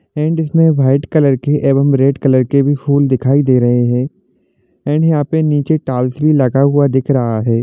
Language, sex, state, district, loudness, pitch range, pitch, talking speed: Hindi, male, Jharkhand, Jamtara, -13 LUFS, 130-150 Hz, 140 Hz, 165 wpm